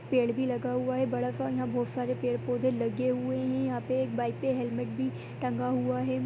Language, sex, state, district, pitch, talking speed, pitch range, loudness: Hindi, female, Bihar, Begusarai, 125 Hz, 220 wpm, 120-130 Hz, -31 LUFS